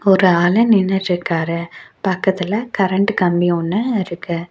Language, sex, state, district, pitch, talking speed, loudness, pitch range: Tamil, female, Tamil Nadu, Nilgiris, 185 Hz, 120 wpm, -17 LUFS, 175-200 Hz